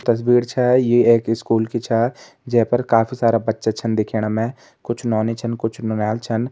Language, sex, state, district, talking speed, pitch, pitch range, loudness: Hindi, male, Uttarakhand, Tehri Garhwal, 185 wpm, 115 Hz, 110-120 Hz, -19 LUFS